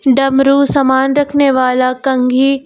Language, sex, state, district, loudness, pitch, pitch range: Hindi, female, Uttar Pradesh, Lucknow, -12 LUFS, 270 Hz, 260-275 Hz